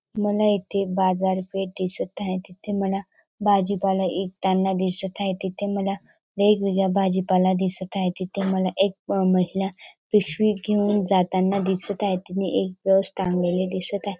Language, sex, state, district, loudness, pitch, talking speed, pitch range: Marathi, female, Maharashtra, Dhule, -23 LUFS, 190 Hz, 150 wpm, 185-200 Hz